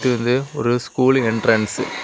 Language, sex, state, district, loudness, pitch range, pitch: Tamil, male, Tamil Nadu, Kanyakumari, -18 LUFS, 115-130 Hz, 125 Hz